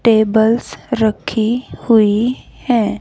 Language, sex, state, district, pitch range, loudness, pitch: Hindi, female, Haryana, Charkhi Dadri, 220-235 Hz, -15 LUFS, 225 Hz